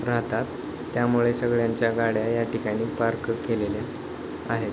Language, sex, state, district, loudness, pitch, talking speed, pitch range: Marathi, male, Maharashtra, Chandrapur, -26 LUFS, 115 Hz, 115 wpm, 115-120 Hz